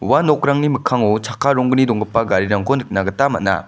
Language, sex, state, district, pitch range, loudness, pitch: Garo, male, Meghalaya, West Garo Hills, 105-140 Hz, -17 LUFS, 125 Hz